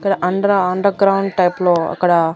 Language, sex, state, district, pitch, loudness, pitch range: Telugu, female, Andhra Pradesh, Annamaya, 185 Hz, -16 LUFS, 175-195 Hz